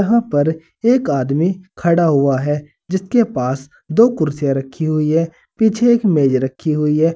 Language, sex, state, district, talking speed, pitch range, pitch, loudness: Hindi, male, Uttar Pradesh, Saharanpur, 170 wpm, 145-190 Hz, 160 Hz, -17 LUFS